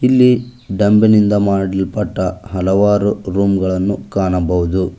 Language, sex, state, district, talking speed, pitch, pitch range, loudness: Kannada, male, Karnataka, Koppal, 95 wpm, 100 Hz, 95-105 Hz, -15 LUFS